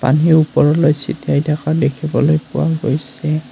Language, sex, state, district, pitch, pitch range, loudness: Assamese, male, Assam, Kamrup Metropolitan, 155 Hz, 145-155 Hz, -16 LUFS